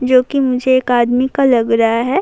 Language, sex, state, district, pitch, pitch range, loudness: Urdu, female, Bihar, Saharsa, 255 Hz, 240-260 Hz, -14 LUFS